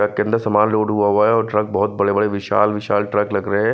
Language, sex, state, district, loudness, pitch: Hindi, male, Punjab, Fazilka, -18 LUFS, 105 Hz